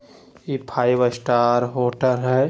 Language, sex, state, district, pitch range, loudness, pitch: Hindi, male, Bihar, Jamui, 120-130 Hz, -20 LUFS, 125 Hz